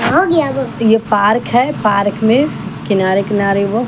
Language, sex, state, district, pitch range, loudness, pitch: Hindi, female, Bihar, Patna, 200-250 Hz, -14 LUFS, 220 Hz